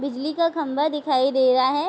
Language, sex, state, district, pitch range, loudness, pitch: Hindi, female, Bihar, Vaishali, 265-300 Hz, -21 LUFS, 275 Hz